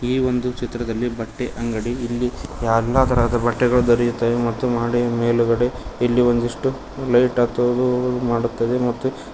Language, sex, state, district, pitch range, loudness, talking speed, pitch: Kannada, male, Karnataka, Koppal, 120-125 Hz, -20 LUFS, 120 wpm, 120 Hz